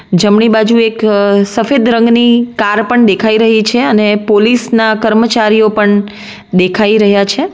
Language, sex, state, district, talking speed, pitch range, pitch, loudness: Gujarati, female, Gujarat, Valsad, 135 wpm, 210-230 Hz, 220 Hz, -9 LUFS